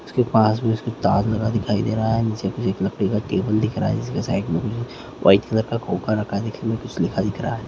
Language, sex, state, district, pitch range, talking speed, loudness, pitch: Maithili, male, Bihar, Araria, 100-115 Hz, 240 wpm, -22 LUFS, 110 Hz